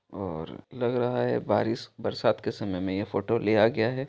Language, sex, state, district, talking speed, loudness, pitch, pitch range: Maithili, male, Bihar, Supaul, 205 wpm, -28 LUFS, 105 Hz, 95-115 Hz